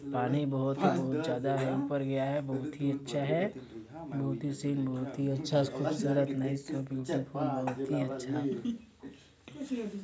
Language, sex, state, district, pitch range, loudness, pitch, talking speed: Hindi, male, Chhattisgarh, Sarguja, 135-145 Hz, -33 LUFS, 140 Hz, 165 wpm